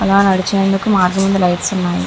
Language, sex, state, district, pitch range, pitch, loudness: Telugu, female, Andhra Pradesh, Visakhapatnam, 180-195 Hz, 195 Hz, -14 LUFS